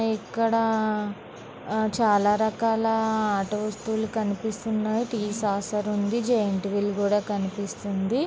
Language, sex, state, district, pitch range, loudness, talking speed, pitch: Telugu, female, Andhra Pradesh, Visakhapatnam, 205-225 Hz, -26 LUFS, 95 wpm, 215 Hz